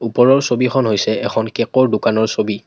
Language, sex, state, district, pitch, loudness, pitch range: Assamese, male, Assam, Kamrup Metropolitan, 115 Hz, -16 LUFS, 110-130 Hz